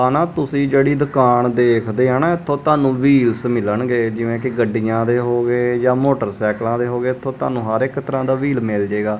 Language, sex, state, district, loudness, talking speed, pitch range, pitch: Punjabi, male, Punjab, Kapurthala, -17 LUFS, 195 wpm, 115-135 Hz, 125 Hz